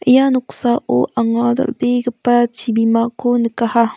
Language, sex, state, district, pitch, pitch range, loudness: Garo, female, Meghalaya, West Garo Hills, 240 Hz, 230-245 Hz, -16 LUFS